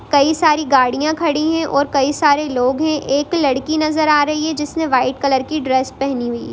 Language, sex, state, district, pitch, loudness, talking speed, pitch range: Hindi, female, Bihar, Sitamarhi, 290 Hz, -16 LUFS, 210 wpm, 270-310 Hz